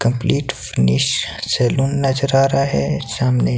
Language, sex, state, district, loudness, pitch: Hindi, male, Himachal Pradesh, Shimla, -18 LUFS, 130 Hz